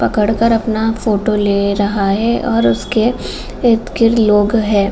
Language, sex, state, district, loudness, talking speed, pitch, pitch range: Hindi, female, Bihar, Saran, -14 LUFS, 145 wpm, 215 Hz, 205-230 Hz